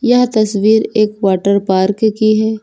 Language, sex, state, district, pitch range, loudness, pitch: Hindi, female, Uttar Pradesh, Lucknow, 200-220 Hz, -13 LUFS, 215 Hz